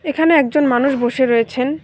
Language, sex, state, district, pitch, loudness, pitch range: Bengali, female, West Bengal, Alipurduar, 275 Hz, -15 LUFS, 245-295 Hz